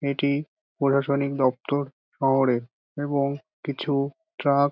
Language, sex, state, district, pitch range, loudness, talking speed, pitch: Bengali, male, West Bengal, Dakshin Dinajpur, 135-145 Hz, -25 LUFS, 100 wpm, 140 Hz